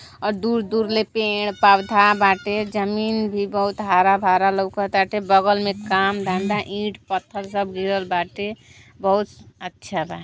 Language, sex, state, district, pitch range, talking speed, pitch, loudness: Bhojpuri, female, Uttar Pradesh, Gorakhpur, 195-210 Hz, 150 wpm, 200 Hz, -20 LUFS